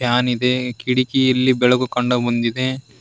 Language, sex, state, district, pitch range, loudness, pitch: Kannada, male, Karnataka, Koppal, 125-130 Hz, -18 LUFS, 125 Hz